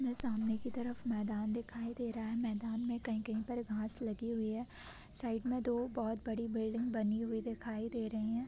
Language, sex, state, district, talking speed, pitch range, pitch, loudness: Hindi, female, Chhattisgarh, Bilaspur, 185 wpm, 220-240 Hz, 230 Hz, -39 LUFS